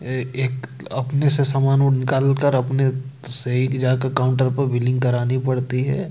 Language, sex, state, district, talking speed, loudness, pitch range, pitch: Hindi, male, Madhya Pradesh, Bhopal, 145 wpm, -20 LUFS, 130-135 Hz, 130 Hz